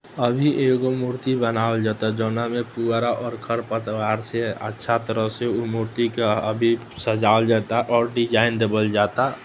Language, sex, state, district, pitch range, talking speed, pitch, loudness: Maithili, male, Bihar, Samastipur, 110-120 Hz, 160 wpm, 115 Hz, -22 LUFS